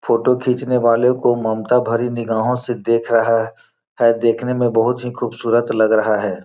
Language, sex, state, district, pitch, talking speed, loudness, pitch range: Hindi, male, Bihar, Gopalganj, 115 Hz, 185 wpm, -17 LUFS, 115-125 Hz